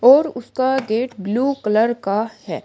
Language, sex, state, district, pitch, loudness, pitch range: Hindi, female, Uttar Pradesh, Shamli, 235 Hz, -19 LUFS, 210-260 Hz